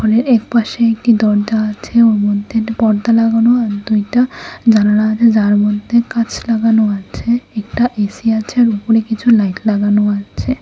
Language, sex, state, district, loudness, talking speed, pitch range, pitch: Bengali, female, Tripura, West Tripura, -14 LUFS, 165 wpm, 210-230 Hz, 220 Hz